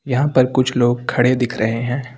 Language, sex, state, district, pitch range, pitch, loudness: Hindi, male, Uttar Pradesh, Lucknow, 120-130 Hz, 125 Hz, -17 LUFS